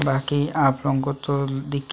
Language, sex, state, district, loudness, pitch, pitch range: Hindi, male, Chhattisgarh, Sukma, -23 LUFS, 140 Hz, 135-145 Hz